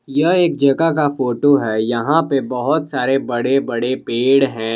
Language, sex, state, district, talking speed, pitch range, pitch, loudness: Hindi, male, Jharkhand, Palamu, 175 wpm, 120-145 Hz, 135 Hz, -17 LUFS